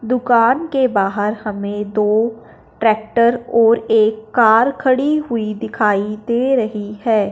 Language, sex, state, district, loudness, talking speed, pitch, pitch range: Hindi, male, Punjab, Fazilka, -16 LUFS, 125 wpm, 225 Hz, 210-240 Hz